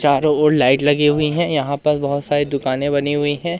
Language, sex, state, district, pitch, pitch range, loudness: Hindi, male, Madhya Pradesh, Umaria, 145 Hz, 140-150 Hz, -17 LUFS